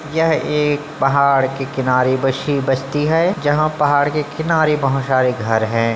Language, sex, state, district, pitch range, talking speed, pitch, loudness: Chhattisgarhi, male, Chhattisgarh, Bilaspur, 130-150 Hz, 170 wpm, 140 Hz, -17 LUFS